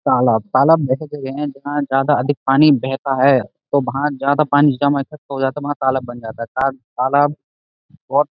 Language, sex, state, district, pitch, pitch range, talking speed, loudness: Hindi, male, Uttar Pradesh, Budaun, 140 Hz, 130-145 Hz, 195 wpm, -17 LUFS